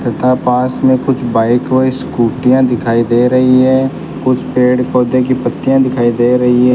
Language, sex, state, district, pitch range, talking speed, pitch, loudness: Hindi, male, Rajasthan, Bikaner, 125-130 Hz, 175 wpm, 125 Hz, -12 LUFS